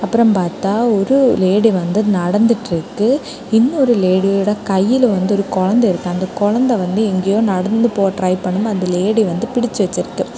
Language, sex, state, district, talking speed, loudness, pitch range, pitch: Tamil, female, Tamil Nadu, Kanyakumari, 160 wpm, -15 LUFS, 185-230 Hz, 205 Hz